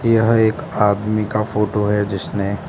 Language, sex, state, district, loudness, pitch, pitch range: Hindi, male, Mizoram, Aizawl, -18 LUFS, 105 Hz, 105-110 Hz